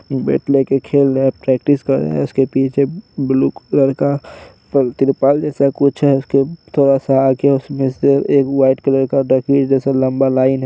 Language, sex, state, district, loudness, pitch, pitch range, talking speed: Hindi, male, Bihar, Araria, -15 LUFS, 135 Hz, 135-140 Hz, 150 wpm